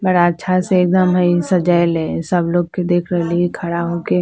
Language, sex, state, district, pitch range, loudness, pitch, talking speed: Bajjika, female, Bihar, Vaishali, 170-180 Hz, -16 LUFS, 175 Hz, 200 wpm